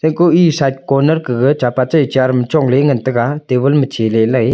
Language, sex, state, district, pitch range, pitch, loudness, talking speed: Wancho, male, Arunachal Pradesh, Longding, 125-150 Hz, 135 Hz, -13 LUFS, 185 wpm